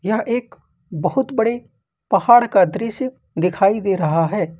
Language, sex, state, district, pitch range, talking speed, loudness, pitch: Hindi, male, Jharkhand, Ranchi, 185-240 Hz, 145 wpm, -18 LUFS, 215 Hz